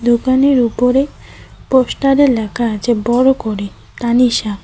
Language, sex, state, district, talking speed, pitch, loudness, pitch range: Bengali, female, West Bengal, Cooch Behar, 105 wpm, 245 Hz, -14 LUFS, 230-260 Hz